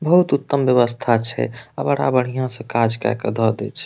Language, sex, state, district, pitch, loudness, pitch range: Maithili, male, Bihar, Madhepura, 120 Hz, -19 LUFS, 115-130 Hz